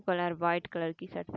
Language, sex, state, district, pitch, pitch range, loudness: Hindi, female, Chhattisgarh, Bastar, 175 Hz, 170-180 Hz, -33 LUFS